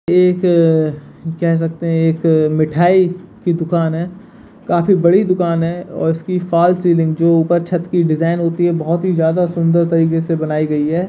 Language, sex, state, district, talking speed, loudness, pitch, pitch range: Hindi, male, Bihar, Purnia, 185 wpm, -15 LUFS, 170 Hz, 165-175 Hz